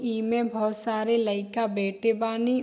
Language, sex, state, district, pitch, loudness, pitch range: Hindi, female, Bihar, Saharsa, 225 Hz, -27 LUFS, 215-230 Hz